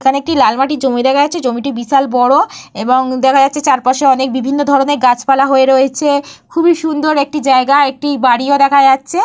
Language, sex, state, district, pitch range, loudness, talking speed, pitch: Bengali, female, Jharkhand, Jamtara, 260-285 Hz, -12 LUFS, 180 wpm, 275 Hz